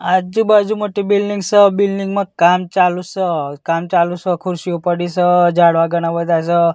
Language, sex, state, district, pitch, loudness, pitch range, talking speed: Gujarati, male, Gujarat, Gandhinagar, 180 Hz, -15 LUFS, 170-200 Hz, 170 wpm